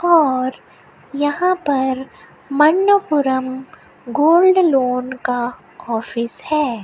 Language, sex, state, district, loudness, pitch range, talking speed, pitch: Hindi, female, Rajasthan, Bikaner, -17 LUFS, 255-320 Hz, 80 wpm, 275 Hz